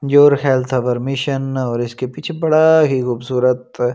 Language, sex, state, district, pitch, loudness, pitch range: Hindi, male, Delhi, New Delhi, 130 Hz, -16 LUFS, 125-145 Hz